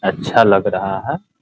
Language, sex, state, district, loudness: Hindi, male, Bihar, Muzaffarpur, -16 LUFS